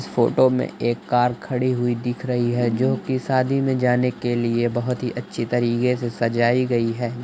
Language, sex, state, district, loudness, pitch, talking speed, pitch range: Hindi, male, Uttar Pradesh, Budaun, -21 LUFS, 120 Hz, 200 wpm, 120-125 Hz